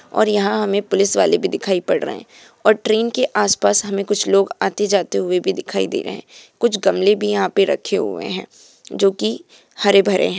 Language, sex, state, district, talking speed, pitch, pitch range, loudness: Hindi, female, Bihar, Purnia, 210 wpm, 205 Hz, 195-215 Hz, -18 LUFS